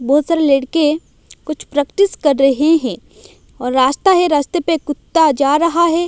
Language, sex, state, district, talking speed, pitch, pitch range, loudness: Hindi, female, Odisha, Malkangiri, 165 wpm, 300 Hz, 280-330 Hz, -15 LUFS